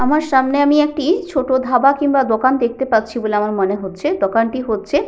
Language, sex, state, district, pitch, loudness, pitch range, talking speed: Bengali, female, West Bengal, Jhargram, 260 Hz, -16 LUFS, 220-285 Hz, 190 wpm